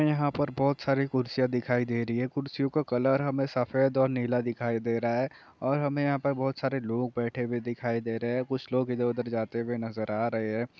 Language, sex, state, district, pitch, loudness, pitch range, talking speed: Hindi, male, Telangana, Nalgonda, 125 Hz, -29 LUFS, 120-135 Hz, 235 wpm